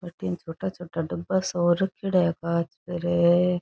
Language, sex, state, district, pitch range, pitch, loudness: Rajasthani, female, Rajasthan, Churu, 170-180 Hz, 175 Hz, -25 LUFS